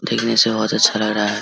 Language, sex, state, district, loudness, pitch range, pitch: Hindi, male, Bihar, Vaishali, -16 LUFS, 105-115 Hz, 110 Hz